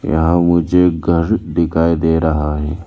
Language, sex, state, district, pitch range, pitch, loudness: Hindi, male, Arunachal Pradesh, Lower Dibang Valley, 80-85 Hz, 85 Hz, -15 LUFS